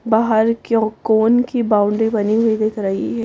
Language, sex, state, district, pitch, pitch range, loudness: Hindi, female, Madhya Pradesh, Bhopal, 220 Hz, 215-225 Hz, -17 LUFS